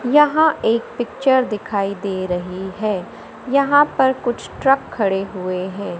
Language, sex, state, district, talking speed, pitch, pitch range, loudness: Hindi, male, Madhya Pradesh, Katni, 140 wpm, 215 Hz, 190-265 Hz, -19 LUFS